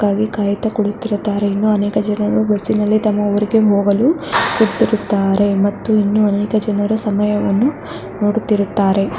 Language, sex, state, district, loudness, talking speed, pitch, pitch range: Kannada, female, Karnataka, Mysore, -16 LUFS, 105 wpm, 210 Hz, 205-215 Hz